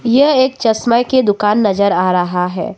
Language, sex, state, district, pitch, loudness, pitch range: Hindi, female, Arunachal Pradesh, Papum Pare, 215 Hz, -13 LUFS, 200-245 Hz